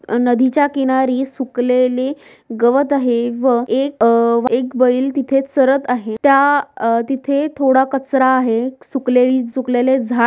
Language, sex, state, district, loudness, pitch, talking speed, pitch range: Marathi, female, Maharashtra, Sindhudurg, -16 LUFS, 260 Hz, 130 wpm, 245-270 Hz